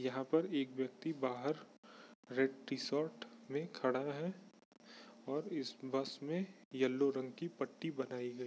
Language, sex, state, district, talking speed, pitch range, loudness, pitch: Hindi, male, Bihar, Bhagalpur, 140 wpm, 130-160 Hz, -40 LUFS, 135 Hz